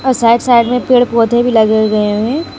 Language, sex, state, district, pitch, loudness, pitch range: Hindi, female, Jharkhand, Deoghar, 235 Hz, -11 LUFS, 220-245 Hz